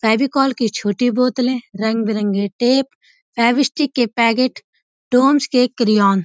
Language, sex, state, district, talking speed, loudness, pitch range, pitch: Hindi, female, Uttarakhand, Uttarkashi, 135 wpm, -17 LUFS, 220-260 Hz, 245 Hz